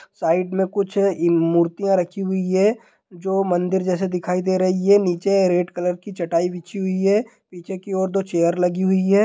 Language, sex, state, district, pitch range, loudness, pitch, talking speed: Hindi, male, Bihar, Sitamarhi, 180-195 Hz, -20 LUFS, 185 Hz, 200 wpm